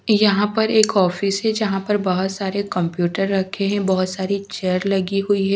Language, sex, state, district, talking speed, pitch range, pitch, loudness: Hindi, female, Haryana, Charkhi Dadri, 195 wpm, 190-205 Hz, 195 Hz, -20 LUFS